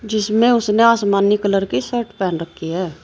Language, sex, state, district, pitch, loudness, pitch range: Hindi, female, Uttar Pradesh, Saharanpur, 205 Hz, -17 LUFS, 185-230 Hz